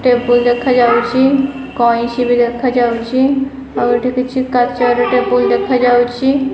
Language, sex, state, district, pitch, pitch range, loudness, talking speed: Odia, female, Odisha, Khordha, 245 Hz, 240-260 Hz, -13 LUFS, 100 wpm